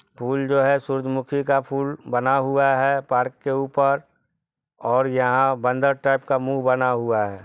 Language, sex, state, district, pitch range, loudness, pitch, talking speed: Hindi, male, Bihar, Sitamarhi, 130-140 Hz, -21 LUFS, 135 Hz, 175 wpm